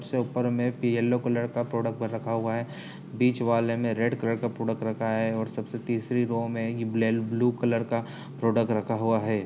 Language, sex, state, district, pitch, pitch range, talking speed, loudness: Hindi, male, Uttar Pradesh, Jyotiba Phule Nagar, 115 Hz, 115-120 Hz, 205 wpm, -27 LUFS